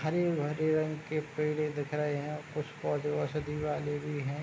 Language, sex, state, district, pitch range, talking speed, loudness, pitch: Hindi, male, Bihar, Begusarai, 150-155 Hz, 175 wpm, -33 LUFS, 150 Hz